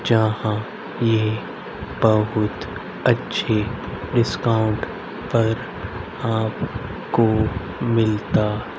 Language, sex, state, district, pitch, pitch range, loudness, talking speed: Hindi, male, Haryana, Rohtak, 110 Hz, 105-115 Hz, -22 LUFS, 55 wpm